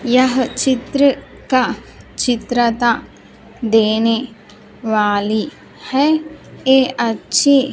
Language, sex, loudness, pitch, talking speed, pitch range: Hindi, female, -16 LUFS, 245 Hz, 80 wpm, 225-265 Hz